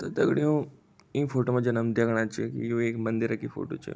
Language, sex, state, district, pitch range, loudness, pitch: Garhwali, male, Uttarakhand, Tehri Garhwal, 115-135 Hz, -28 LUFS, 115 Hz